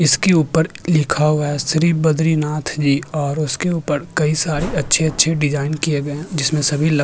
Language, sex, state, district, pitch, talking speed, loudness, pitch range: Hindi, male, Uttarakhand, Tehri Garhwal, 155 Hz, 190 wpm, -17 LUFS, 145-160 Hz